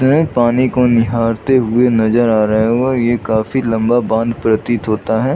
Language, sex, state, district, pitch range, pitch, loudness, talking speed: Hindi, male, Chhattisgarh, Bilaspur, 110-125 Hz, 120 Hz, -14 LUFS, 180 wpm